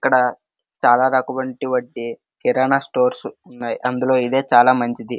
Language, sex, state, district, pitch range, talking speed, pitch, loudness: Telugu, male, Andhra Pradesh, Srikakulam, 125-130 Hz, 125 wpm, 125 Hz, -18 LUFS